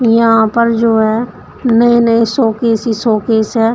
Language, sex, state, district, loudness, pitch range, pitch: Hindi, female, Uttar Pradesh, Shamli, -12 LUFS, 225-235 Hz, 230 Hz